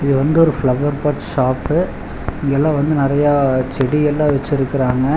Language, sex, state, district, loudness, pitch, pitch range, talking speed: Tamil, male, Tamil Nadu, Chennai, -16 LUFS, 140 Hz, 130-150 Hz, 140 wpm